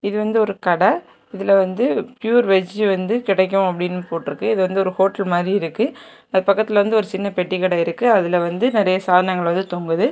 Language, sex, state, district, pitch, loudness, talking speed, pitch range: Tamil, female, Tamil Nadu, Kanyakumari, 195 Hz, -18 LUFS, 180 wpm, 180-210 Hz